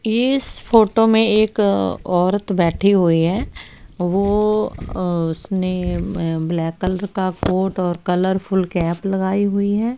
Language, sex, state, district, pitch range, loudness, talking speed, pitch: Hindi, female, Haryana, Rohtak, 175-205 Hz, -18 LUFS, 130 wpm, 190 Hz